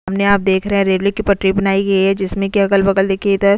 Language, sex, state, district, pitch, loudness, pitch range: Hindi, female, Goa, North and South Goa, 195 Hz, -15 LUFS, 195-200 Hz